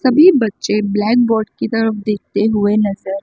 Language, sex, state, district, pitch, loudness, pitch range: Hindi, female, Chandigarh, Chandigarh, 215 Hz, -15 LUFS, 205-225 Hz